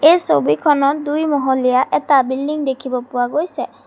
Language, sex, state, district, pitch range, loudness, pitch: Assamese, female, Assam, Sonitpur, 255-300 Hz, -17 LUFS, 275 Hz